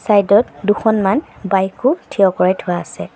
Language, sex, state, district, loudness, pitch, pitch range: Assamese, male, Assam, Sonitpur, -16 LUFS, 200 Hz, 190-220 Hz